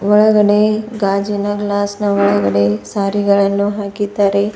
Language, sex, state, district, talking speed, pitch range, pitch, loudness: Kannada, female, Karnataka, Bidar, 80 wpm, 200-205 Hz, 205 Hz, -15 LUFS